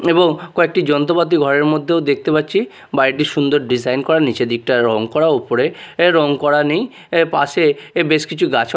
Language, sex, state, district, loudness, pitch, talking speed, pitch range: Bengali, male, Odisha, Nuapada, -16 LUFS, 155 Hz, 180 wpm, 145-170 Hz